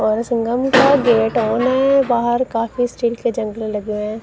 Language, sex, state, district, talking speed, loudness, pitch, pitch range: Hindi, female, Punjab, Kapurthala, 170 wpm, -17 LUFS, 235 Hz, 220-250 Hz